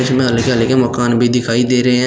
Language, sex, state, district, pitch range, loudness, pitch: Hindi, male, Uttar Pradesh, Shamli, 120-125 Hz, -14 LUFS, 125 Hz